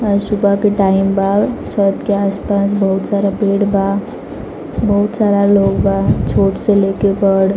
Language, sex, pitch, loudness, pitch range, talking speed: Bhojpuri, female, 200 Hz, -14 LUFS, 195-205 Hz, 145 wpm